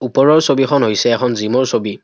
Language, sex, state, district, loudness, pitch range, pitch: Assamese, male, Assam, Kamrup Metropolitan, -14 LUFS, 115-140 Hz, 125 Hz